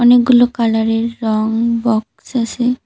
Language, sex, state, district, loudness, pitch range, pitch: Bengali, female, West Bengal, Cooch Behar, -15 LUFS, 225-245 Hz, 235 Hz